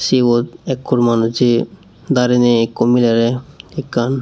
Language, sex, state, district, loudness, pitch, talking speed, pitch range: Chakma, male, Tripura, Unakoti, -15 LUFS, 120 Hz, 100 wpm, 120-130 Hz